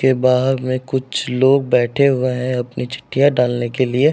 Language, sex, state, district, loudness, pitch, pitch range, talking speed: Hindi, male, Uttar Pradesh, Jalaun, -17 LUFS, 130 Hz, 125-135 Hz, 190 wpm